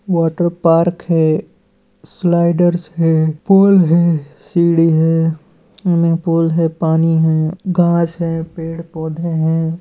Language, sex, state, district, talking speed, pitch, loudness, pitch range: Hindi, male, West Bengal, Malda, 115 wpm, 165 Hz, -15 LUFS, 160-170 Hz